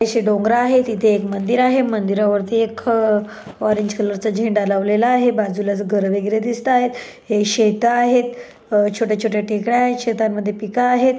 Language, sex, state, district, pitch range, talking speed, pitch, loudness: Marathi, female, Maharashtra, Dhule, 210-240 Hz, 155 wpm, 220 Hz, -18 LUFS